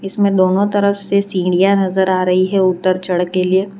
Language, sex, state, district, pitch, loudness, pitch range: Hindi, female, Gujarat, Valsad, 190 Hz, -15 LUFS, 185-200 Hz